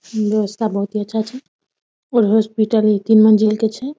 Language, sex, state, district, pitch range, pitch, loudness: Maithili, female, Bihar, Samastipur, 215-225 Hz, 220 Hz, -16 LUFS